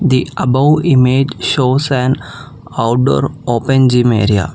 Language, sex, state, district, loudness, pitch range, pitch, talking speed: English, female, Telangana, Hyderabad, -13 LUFS, 120-140 Hz, 130 Hz, 120 wpm